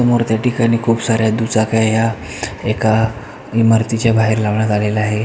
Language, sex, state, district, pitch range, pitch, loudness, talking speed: Marathi, male, Maharashtra, Pune, 110-115 Hz, 110 Hz, -16 LUFS, 150 wpm